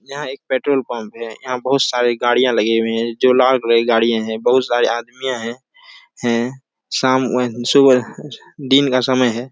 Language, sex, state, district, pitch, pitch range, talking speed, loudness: Hindi, male, Bihar, Araria, 125 Hz, 115-130 Hz, 190 wpm, -17 LUFS